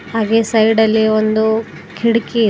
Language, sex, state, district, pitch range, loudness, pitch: Kannada, female, Karnataka, Bidar, 215-225 Hz, -14 LUFS, 220 Hz